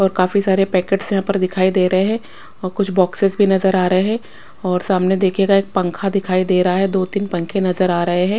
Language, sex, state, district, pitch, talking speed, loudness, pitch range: Hindi, female, Odisha, Khordha, 190 Hz, 230 wpm, -17 LUFS, 185-195 Hz